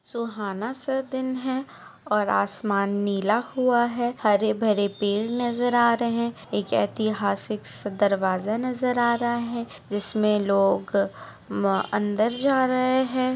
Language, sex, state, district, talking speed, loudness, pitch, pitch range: Hindi, female, Andhra Pradesh, Anantapur, 110 wpm, -24 LUFS, 220 Hz, 205-245 Hz